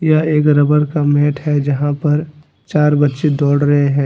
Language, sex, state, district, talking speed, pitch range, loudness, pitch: Hindi, male, Jharkhand, Deoghar, 190 wpm, 145-150 Hz, -14 LUFS, 145 Hz